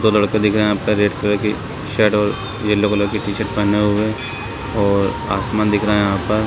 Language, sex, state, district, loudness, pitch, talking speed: Hindi, male, Chhattisgarh, Raigarh, -18 LUFS, 105 Hz, 240 wpm